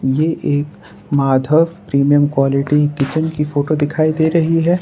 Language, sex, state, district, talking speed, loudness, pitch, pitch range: Hindi, male, Gujarat, Valsad, 150 wpm, -16 LUFS, 150 Hz, 140-160 Hz